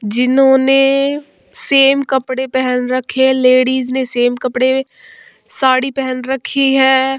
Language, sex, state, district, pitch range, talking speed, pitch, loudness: Hindi, female, Bihar, Vaishali, 255-270 Hz, 115 wpm, 265 Hz, -13 LUFS